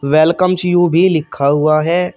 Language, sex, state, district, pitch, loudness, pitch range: Hindi, male, Uttar Pradesh, Shamli, 170 Hz, -13 LUFS, 155-180 Hz